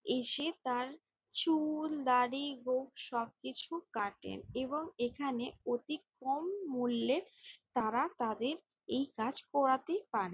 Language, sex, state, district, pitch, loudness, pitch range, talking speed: Bengali, female, West Bengal, Jalpaiguri, 260 Hz, -36 LUFS, 245-305 Hz, 105 wpm